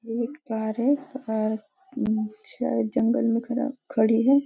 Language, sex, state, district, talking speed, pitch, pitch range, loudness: Hindi, female, Maharashtra, Nagpur, 160 wpm, 230 Hz, 220-270 Hz, -26 LUFS